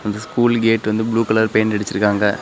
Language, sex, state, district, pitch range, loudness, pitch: Tamil, male, Tamil Nadu, Kanyakumari, 105-115 Hz, -17 LUFS, 110 Hz